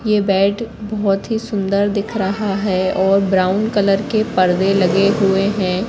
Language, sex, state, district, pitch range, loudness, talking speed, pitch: Hindi, female, Madhya Pradesh, Katni, 195-210 Hz, -17 LUFS, 165 wpm, 195 Hz